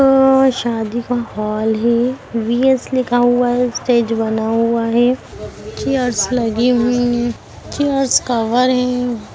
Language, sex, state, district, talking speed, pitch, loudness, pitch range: Hindi, female, Chhattisgarh, Raigarh, 130 wpm, 245 Hz, -16 LUFS, 230-250 Hz